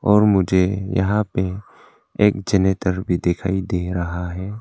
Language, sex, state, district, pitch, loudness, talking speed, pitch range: Hindi, male, Arunachal Pradesh, Longding, 95 Hz, -20 LUFS, 145 wpm, 90-100 Hz